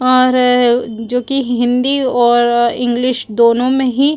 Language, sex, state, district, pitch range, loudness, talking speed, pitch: Hindi, female, Chhattisgarh, Bastar, 240-255 Hz, -13 LUFS, 145 wpm, 250 Hz